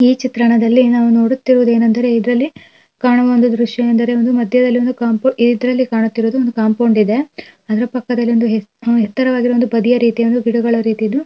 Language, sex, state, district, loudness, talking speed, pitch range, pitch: Kannada, female, Karnataka, Raichur, -14 LUFS, 150 wpm, 230-250 Hz, 240 Hz